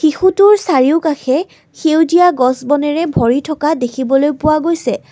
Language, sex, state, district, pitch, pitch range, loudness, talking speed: Assamese, female, Assam, Kamrup Metropolitan, 310 Hz, 270-330 Hz, -13 LUFS, 115 wpm